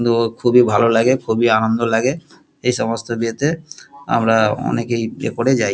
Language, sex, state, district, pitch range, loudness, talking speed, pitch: Bengali, male, West Bengal, Kolkata, 115-125 Hz, -17 LUFS, 165 wpm, 115 Hz